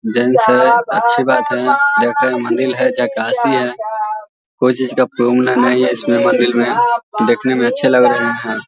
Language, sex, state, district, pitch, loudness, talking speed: Hindi, male, Bihar, Vaishali, 130 Hz, -14 LUFS, 185 wpm